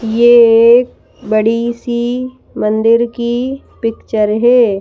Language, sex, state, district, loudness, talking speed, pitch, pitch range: Hindi, female, Madhya Pradesh, Bhopal, -12 LUFS, 85 wpm, 235 Hz, 225-240 Hz